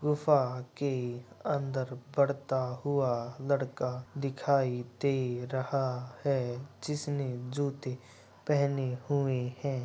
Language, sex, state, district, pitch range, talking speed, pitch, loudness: Hindi, male, Bihar, Begusarai, 125-140 Hz, 90 wpm, 130 Hz, -32 LUFS